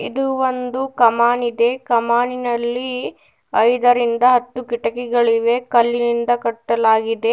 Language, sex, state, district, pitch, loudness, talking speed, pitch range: Kannada, female, Karnataka, Bidar, 240 Hz, -17 LUFS, 80 wpm, 235-250 Hz